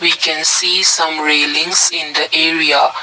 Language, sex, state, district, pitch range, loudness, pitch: English, male, Assam, Kamrup Metropolitan, 150-165 Hz, -12 LUFS, 155 Hz